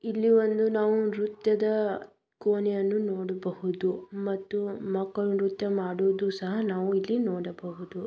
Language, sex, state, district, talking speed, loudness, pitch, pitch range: Kannada, female, Karnataka, Belgaum, 105 wpm, -28 LUFS, 200 Hz, 190-215 Hz